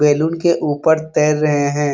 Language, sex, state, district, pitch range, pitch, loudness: Hindi, male, Bihar, Jamui, 145-160 Hz, 150 Hz, -16 LUFS